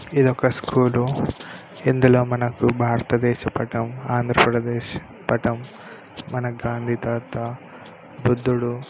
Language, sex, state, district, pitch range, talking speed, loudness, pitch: Telugu, male, Telangana, Nalgonda, 120-125 Hz, 110 wpm, -22 LUFS, 120 Hz